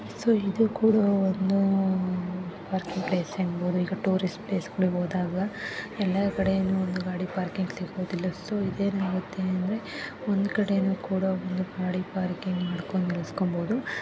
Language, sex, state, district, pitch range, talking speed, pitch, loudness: Kannada, female, Karnataka, Mysore, 185-195 Hz, 110 wpm, 190 Hz, -28 LUFS